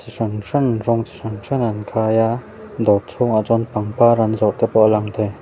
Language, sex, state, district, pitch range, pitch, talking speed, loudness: Mizo, male, Mizoram, Aizawl, 105-115 Hz, 110 Hz, 230 wpm, -18 LUFS